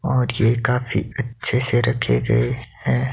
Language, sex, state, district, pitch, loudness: Hindi, male, Himachal Pradesh, Shimla, 120 Hz, -20 LUFS